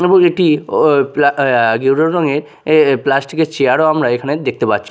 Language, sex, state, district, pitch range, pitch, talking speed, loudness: Bengali, male, Odisha, Nuapada, 135-155 Hz, 145 Hz, 195 wpm, -13 LUFS